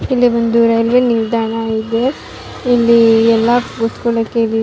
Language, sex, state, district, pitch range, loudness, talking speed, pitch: Kannada, female, Karnataka, Raichur, 225-240 Hz, -14 LUFS, 105 wpm, 230 Hz